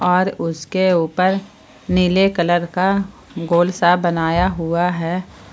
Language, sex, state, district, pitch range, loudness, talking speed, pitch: Hindi, female, Jharkhand, Palamu, 170-185 Hz, -18 LUFS, 120 wpm, 180 Hz